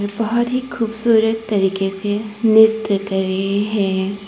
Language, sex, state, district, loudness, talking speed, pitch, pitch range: Hindi, female, Arunachal Pradesh, Papum Pare, -18 LUFS, 125 wpm, 205 Hz, 195-225 Hz